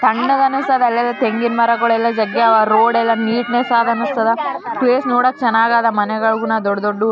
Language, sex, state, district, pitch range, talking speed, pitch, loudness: Kannada, female, Karnataka, Raichur, 225-245 Hz, 65 wpm, 235 Hz, -15 LUFS